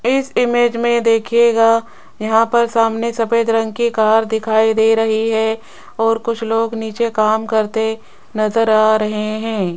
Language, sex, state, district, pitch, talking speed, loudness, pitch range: Hindi, female, Rajasthan, Jaipur, 225 Hz, 155 wpm, -16 LUFS, 220-230 Hz